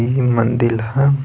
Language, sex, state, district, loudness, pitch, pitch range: Bhojpuri, male, Bihar, East Champaran, -17 LUFS, 120 Hz, 115-135 Hz